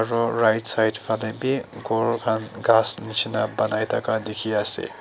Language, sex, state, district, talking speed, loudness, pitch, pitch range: Nagamese, male, Nagaland, Dimapur, 145 wpm, -21 LUFS, 110 Hz, 110-115 Hz